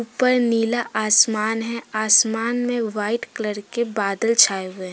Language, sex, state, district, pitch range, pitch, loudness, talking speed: Hindi, female, Jharkhand, Deoghar, 215-235 Hz, 225 Hz, -19 LUFS, 160 wpm